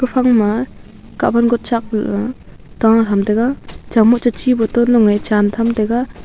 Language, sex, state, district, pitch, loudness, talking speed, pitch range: Wancho, female, Arunachal Pradesh, Longding, 230 Hz, -15 LUFS, 175 wpm, 215-240 Hz